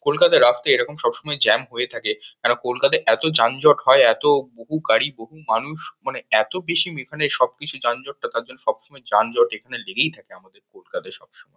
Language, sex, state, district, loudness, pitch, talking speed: Bengali, male, West Bengal, Kolkata, -19 LUFS, 160 Hz, 175 wpm